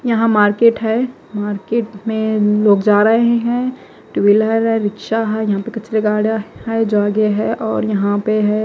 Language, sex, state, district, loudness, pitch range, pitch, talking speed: Hindi, female, Himachal Pradesh, Shimla, -16 LUFS, 210-225 Hz, 215 Hz, 165 wpm